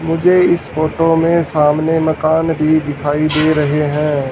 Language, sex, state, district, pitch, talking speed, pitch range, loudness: Hindi, male, Haryana, Charkhi Dadri, 155 Hz, 155 wpm, 150-165 Hz, -14 LUFS